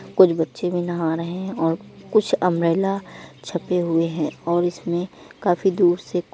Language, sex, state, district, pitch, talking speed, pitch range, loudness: Hindi, female, Uttar Pradesh, Muzaffarnagar, 175 Hz, 170 wpm, 170-180 Hz, -22 LUFS